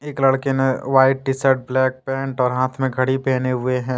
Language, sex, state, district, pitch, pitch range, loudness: Hindi, male, Jharkhand, Deoghar, 130 Hz, 130-135 Hz, -19 LUFS